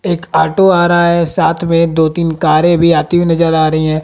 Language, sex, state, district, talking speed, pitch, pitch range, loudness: Hindi, female, Haryana, Jhajjar, 250 wpm, 165 Hz, 160-175 Hz, -11 LUFS